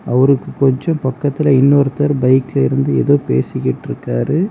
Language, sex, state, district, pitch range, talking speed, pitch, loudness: Tamil, male, Tamil Nadu, Kanyakumari, 120-145 Hz, 95 wpm, 135 Hz, -15 LUFS